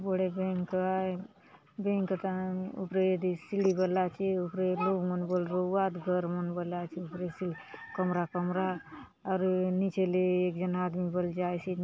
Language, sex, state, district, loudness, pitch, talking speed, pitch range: Halbi, female, Chhattisgarh, Bastar, -32 LUFS, 185 Hz, 160 wpm, 180-185 Hz